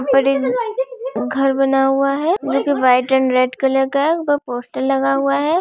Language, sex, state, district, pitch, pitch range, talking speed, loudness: Hindi, female, Andhra Pradesh, Chittoor, 270 Hz, 265-290 Hz, 195 wpm, -17 LUFS